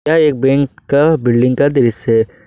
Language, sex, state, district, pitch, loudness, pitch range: Hindi, male, Jharkhand, Ranchi, 135 Hz, -13 LUFS, 120-145 Hz